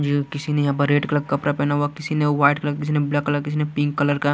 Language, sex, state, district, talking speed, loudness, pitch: Hindi, male, Chhattisgarh, Raipur, 320 wpm, -21 LUFS, 145 Hz